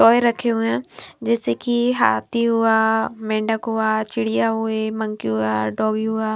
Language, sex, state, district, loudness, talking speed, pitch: Hindi, female, Himachal Pradesh, Shimla, -20 LUFS, 160 wpm, 220 Hz